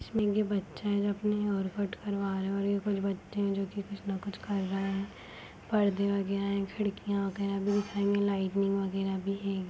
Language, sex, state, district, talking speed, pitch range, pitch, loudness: Hindi, female, Chhattisgarh, Sarguja, 180 wpm, 195-205 Hz, 200 Hz, -32 LUFS